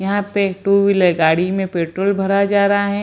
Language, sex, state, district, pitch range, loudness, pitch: Hindi, female, Bihar, Samastipur, 185-200 Hz, -16 LUFS, 200 Hz